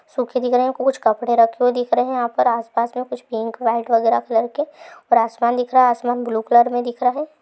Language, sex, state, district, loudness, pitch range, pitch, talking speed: Hindi, female, Andhra Pradesh, Anantapur, -19 LUFS, 230-255 Hz, 245 Hz, 275 wpm